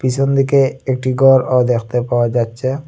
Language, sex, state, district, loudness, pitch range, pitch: Bengali, male, Assam, Hailakandi, -15 LUFS, 120-135 Hz, 130 Hz